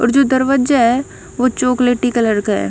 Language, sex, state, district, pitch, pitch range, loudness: Hindi, female, Punjab, Kapurthala, 250 Hz, 235-260 Hz, -15 LUFS